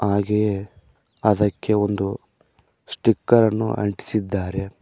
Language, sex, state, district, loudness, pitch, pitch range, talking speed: Kannada, male, Karnataka, Koppal, -21 LUFS, 105 Hz, 100-105 Hz, 75 wpm